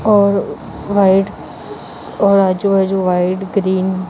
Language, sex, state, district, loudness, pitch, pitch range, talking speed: Hindi, female, Maharashtra, Mumbai Suburban, -15 LUFS, 195 Hz, 185-200 Hz, 130 wpm